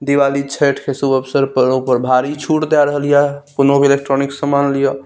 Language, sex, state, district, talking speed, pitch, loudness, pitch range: Maithili, male, Bihar, Saharsa, 190 wpm, 140 Hz, -15 LUFS, 135-145 Hz